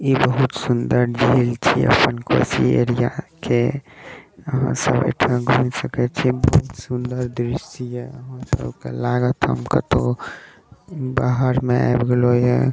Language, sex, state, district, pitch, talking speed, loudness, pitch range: Maithili, male, Bihar, Saharsa, 125 Hz, 135 wpm, -19 LUFS, 120-130 Hz